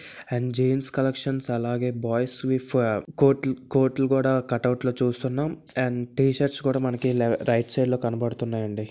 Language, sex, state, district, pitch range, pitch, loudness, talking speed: Telugu, male, Andhra Pradesh, Visakhapatnam, 120-135 Hz, 130 Hz, -25 LUFS, 140 wpm